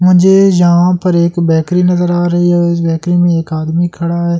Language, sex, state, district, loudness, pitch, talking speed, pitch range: Hindi, male, Delhi, New Delhi, -11 LUFS, 175 Hz, 245 wpm, 170-180 Hz